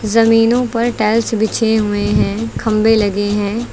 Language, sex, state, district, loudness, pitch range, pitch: Hindi, female, Uttar Pradesh, Lucknow, -15 LUFS, 210-230 Hz, 220 Hz